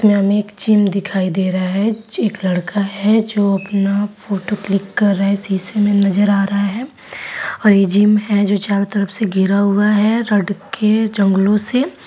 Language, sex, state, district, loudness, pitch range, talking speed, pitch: Hindi, female, Bihar, East Champaran, -16 LUFS, 195-210 Hz, 190 wpm, 205 Hz